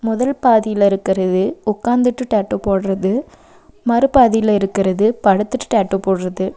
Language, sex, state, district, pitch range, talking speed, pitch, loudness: Tamil, female, Tamil Nadu, Nilgiris, 195-240 Hz, 100 wpm, 210 Hz, -16 LUFS